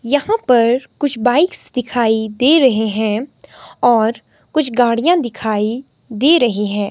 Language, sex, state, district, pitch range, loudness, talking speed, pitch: Hindi, female, Himachal Pradesh, Shimla, 220-280 Hz, -15 LUFS, 130 wpm, 240 Hz